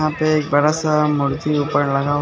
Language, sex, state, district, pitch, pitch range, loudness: Hindi, male, Bihar, Katihar, 150 Hz, 145-155 Hz, -18 LUFS